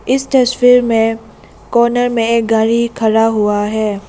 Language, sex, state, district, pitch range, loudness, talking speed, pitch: Hindi, female, Arunachal Pradesh, Lower Dibang Valley, 220-245 Hz, -13 LUFS, 145 wpm, 230 Hz